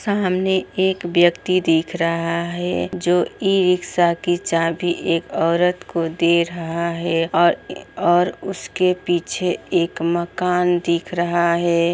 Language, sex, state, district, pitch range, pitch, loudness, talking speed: Hindi, female, Bihar, Araria, 170-180 Hz, 175 Hz, -19 LUFS, 130 wpm